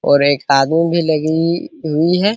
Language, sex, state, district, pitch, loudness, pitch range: Hindi, male, Bihar, Araria, 160 Hz, -15 LUFS, 145-170 Hz